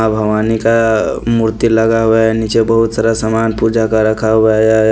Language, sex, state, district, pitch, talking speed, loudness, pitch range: Hindi, male, Punjab, Pathankot, 110 Hz, 205 wpm, -12 LUFS, 110-115 Hz